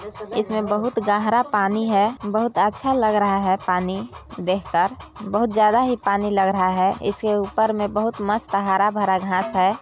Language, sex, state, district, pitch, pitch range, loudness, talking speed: Hindi, female, Chhattisgarh, Balrampur, 205 Hz, 195-215 Hz, -21 LUFS, 170 wpm